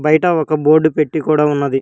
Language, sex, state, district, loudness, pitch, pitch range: Telugu, female, Telangana, Hyderabad, -14 LUFS, 155 Hz, 150-155 Hz